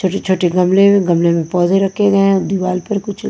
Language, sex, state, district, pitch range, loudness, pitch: Hindi, female, Punjab, Pathankot, 180-195 Hz, -14 LUFS, 190 Hz